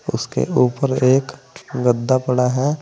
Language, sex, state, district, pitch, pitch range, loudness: Hindi, male, Uttar Pradesh, Saharanpur, 130 Hz, 125-135 Hz, -18 LUFS